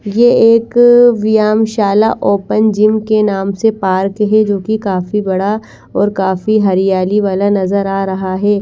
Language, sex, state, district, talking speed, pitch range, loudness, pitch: Hindi, female, Chandigarh, Chandigarh, 155 wpm, 195-215 Hz, -12 LUFS, 205 Hz